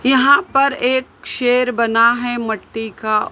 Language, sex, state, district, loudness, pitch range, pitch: Hindi, female, Maharashtra, Mumbai Suburban, -16 LUFS, 230-260 Hz, 245 Hz